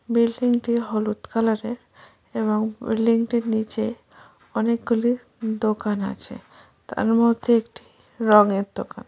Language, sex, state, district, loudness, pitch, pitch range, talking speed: Bengali, female, West Bengal, Jhargram, -22 LUFS, 225 Hz, 220-235 Hz, 105 wpm